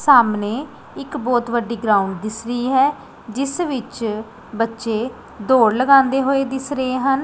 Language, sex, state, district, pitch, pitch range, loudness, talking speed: Punjabi, female, Punjab, Pathankot, 245 Hz, 225-270 Hz, -19 LUFS, 140 wpm